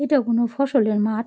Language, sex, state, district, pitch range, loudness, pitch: Bengali, female, West Bengal, Jalpaiguri, 220-275 Hz, -20 LUFS, 235 Hz